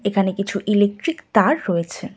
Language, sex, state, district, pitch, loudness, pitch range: Bengali, female, West Bengal, Cooch Behar, 200 Hz, -20 LUFS, 195-210 Hz